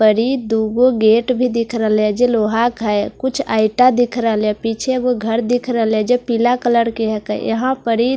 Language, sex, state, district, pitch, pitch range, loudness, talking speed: Hindi, female, Bihar, Katihar, 230 Hz, 220-250 Hz, -16 LUFS, 200 wpm